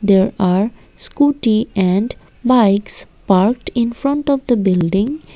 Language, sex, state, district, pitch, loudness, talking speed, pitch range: English, female, Assam, Kamrup Metropolitan, 220 Hz, -16 LUFS, 110 wpm, 195-255 Hz